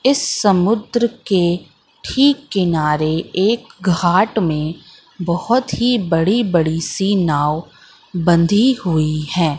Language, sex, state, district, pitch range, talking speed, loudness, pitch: Hindi, female, Madhya Pradesh, Katni, 165-225 Hz, 105 wpm, -17 LUFS, 180 Hz